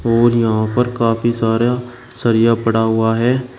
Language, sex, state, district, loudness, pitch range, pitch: Hindi, male, Uttar Pradesh, Shamli, -16 LUFS, 115-120 Hz, 115 Hz